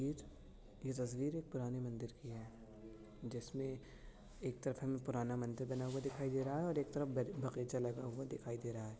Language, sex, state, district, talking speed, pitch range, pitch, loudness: Hindi, male, Uttar Pradesh, Budaun, 195 wpm, 120-135 Hz, 125 Hz, -44 LUFS